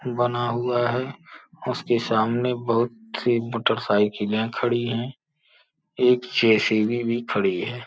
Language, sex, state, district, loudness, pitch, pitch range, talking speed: Hindi, male, Uttar Pradesh, Gorakhpur, -23 LUFS, 120 Hz, 115-125 Hz, 115 wpm